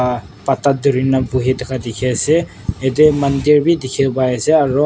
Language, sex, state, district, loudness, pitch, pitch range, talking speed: Nagamese, male, Nagaland, Kohima, -16 LUFS, 130 Hz, 125-145 Hz, 175 wpm